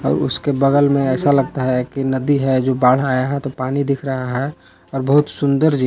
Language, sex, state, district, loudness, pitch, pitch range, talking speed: Hindi, male, Jharkhand, Palamu, -17 LUFS, 135 Hz, 130-140 Hz, 225 wpm